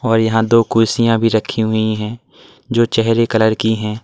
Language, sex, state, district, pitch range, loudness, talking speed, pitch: Hindi, male, Uttar Pradesh, Lalitpur, 110-115 Hz, -15 LUFS, 195 wpm, 115 Hz